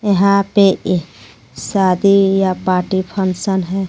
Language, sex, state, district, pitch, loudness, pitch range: Hindi, female, Jharkhand, Garhwa, 190 Hz, -15 LUFS, 180-195 Hz